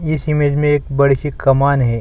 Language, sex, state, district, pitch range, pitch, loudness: Hindi, male, Chhattisgarh, Sukma, 135-150 Hz, 140 Hz, -15 LUFS